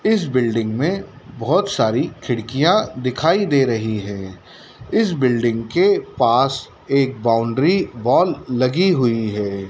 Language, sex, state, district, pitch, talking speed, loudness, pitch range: Hindi, male, Madhya Pradesh, Dhar, 125 Hz, 125 wpm, -18 LUFS, 110-145 Hz